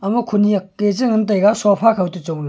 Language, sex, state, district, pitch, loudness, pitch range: Wancho, male, Arunachal Pradesh, Longding, 205 Hz, -16 LUFS, 190-215 Hz